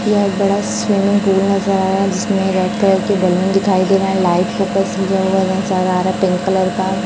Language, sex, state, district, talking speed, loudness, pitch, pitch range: Hindi, female, Chhattisgarh, Raipur, 230 wpm, -15 LUFS, 190 Hz, 190-195 Hz